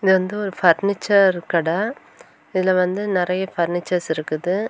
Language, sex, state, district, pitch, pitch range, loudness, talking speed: Tamil, female, Tamil Nadu, Kanyakumari, 185 Hz, 175-200 Hz, -20 LUFS, 130 wpm